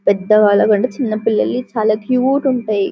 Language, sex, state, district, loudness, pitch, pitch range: Telugu, female, Telangana, Karimnagar, -15 LUFS, 220 Hz, 210-250 Hz